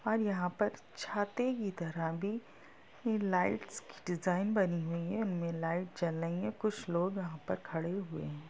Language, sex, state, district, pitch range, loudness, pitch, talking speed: Hindi, female, Bihar, Sitamarhi, 170-205 Hz, -36 LUFS, 180 Hz, 185 wpm